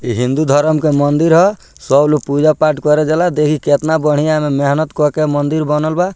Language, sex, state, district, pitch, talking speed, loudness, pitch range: Bhojpuri, male, Bihar, Muzaffarpur, 150 Hz, 195 wpm, -13 LUFS, 145-155 Hz